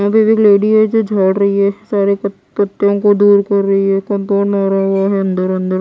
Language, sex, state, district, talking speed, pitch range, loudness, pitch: Hindi, female, Bihar, West Champaran, 185 wpm, 195-205 Hz, -13 LUFS, 200 Hz